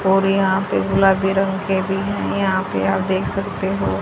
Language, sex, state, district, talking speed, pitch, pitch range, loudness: Hindi, female, Haryana, Rohtak, 210 wpm, 195 Hz, 190-195 Hz, -19 LUFS